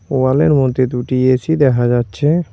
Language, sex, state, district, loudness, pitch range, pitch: Bengali, male, West Bengal, Cooch Behar, -14 LUFS, 125-145 Hz, 130 Hz